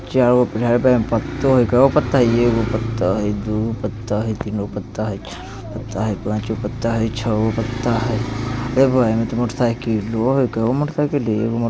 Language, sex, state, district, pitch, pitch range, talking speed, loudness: Bajjika, male, Bihar, Vaishali, 115 Hz, 110-120 Hz, 170 wpm, -19 LUFS